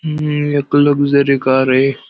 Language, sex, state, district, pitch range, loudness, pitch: Marathi, male, Maharashtra, Pune, 135-145 Hz, -14 LUFS, 140 Hz